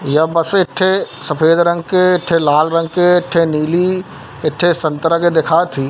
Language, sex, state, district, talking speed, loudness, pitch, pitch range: Chhattisgarhi, male, Chhattisgarh, Bilaspur, 205 wpm, -14 LUFS, 165 Hz, 155-175 Hz